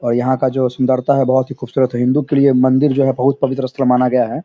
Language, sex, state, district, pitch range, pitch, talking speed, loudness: Hindi, male, Bihar, Samastipur, 125-135 Hz, 130 Hz, 295 wpm, -15 LUFS